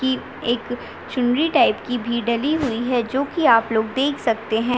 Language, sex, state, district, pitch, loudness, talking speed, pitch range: Hindi, female, Chhattisgarh, Bilaspur, 245 Hz, -21 LUFS, 200 wpm, 235-265 Hz